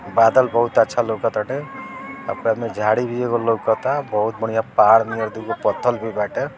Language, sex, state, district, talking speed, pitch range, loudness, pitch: Bhojpuri, male, Bihar, East Champaran, 165 wpm, 110-125 Hz, -19 LUFS, 115 Hz